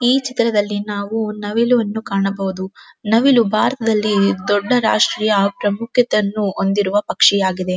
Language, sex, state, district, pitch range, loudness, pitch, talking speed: Kannada, female, Karnataka, Dharwad, 200-225 Hz, -17 LUFS, 210 Hz, 100 wpm